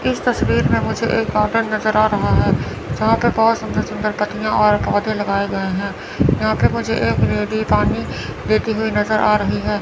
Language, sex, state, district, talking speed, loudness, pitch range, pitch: Hindi, female, Chandigarh, Chandigarh, 200 wpm, -18 LUFS, 210-220 Hz, 215 Hz